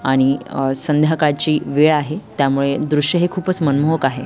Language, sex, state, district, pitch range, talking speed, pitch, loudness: Marathi, female, Maharashtra, Dhule, 140-155 Hz, 155 wpm, 150 Hz, -17 LUFS